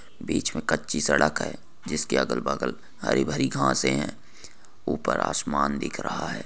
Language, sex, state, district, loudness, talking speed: Hindi, male, Jharkhand, Jamtara, -26 LUFS, 165 wpm